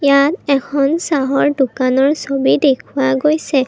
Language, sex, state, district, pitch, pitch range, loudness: Assamese, female, Assam, Kamrup Metropolitan, 275 Hz, 270-290 Hz, -15 LUFS